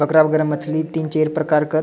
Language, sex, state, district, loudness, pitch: Sadri, male, Chhattisgarh, Jashpur, -19 LUFS, 155 Hz